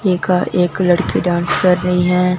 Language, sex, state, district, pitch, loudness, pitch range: Hindi, male, Punjab, Fazilka, 180 Hz, -15 LUFS, 175-180 Hz